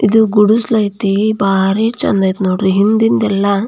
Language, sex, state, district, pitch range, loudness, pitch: Kannada, female, Karnataka, Belgaum, 195-220 Hz, -13 LUFS, 205 Hz